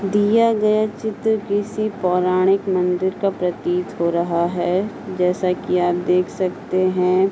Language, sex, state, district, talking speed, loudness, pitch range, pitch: Hindi, female, Uttar Pradesh, Hamirpur, 140 wpm, -20 LUFS, 180-205 Hz, 185 Hz